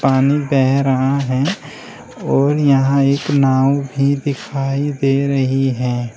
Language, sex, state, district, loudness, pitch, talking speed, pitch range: Hindi, male, Uttar Pradesh, Shamli, -16 LUFS, 135 Hz, 125 wpm, 135-140 Hz